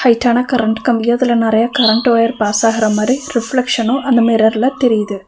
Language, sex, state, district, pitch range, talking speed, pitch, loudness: Tamil, female, Tamil Nadu, Nilgiris, 220-250 Hz, 160 wpm, 235 Hz, -13 LUFS